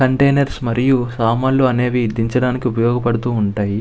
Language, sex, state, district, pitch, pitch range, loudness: Telugu, male, Andhra Pradesh, Visakhapatnam, 120 Hz, 115-130 Hz, -17 LUFS